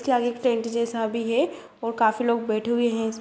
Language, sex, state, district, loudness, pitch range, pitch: Hindi, female, Bihar, Sitamarhi, -24 LUFS, 225-240 Hz, 230 Hz